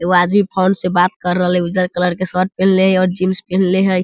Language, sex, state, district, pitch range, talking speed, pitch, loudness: Hindi, male, Bihar, Sitamarhi, 180-190 Hz, 265 wpm, 185 Hz, -15 LUFS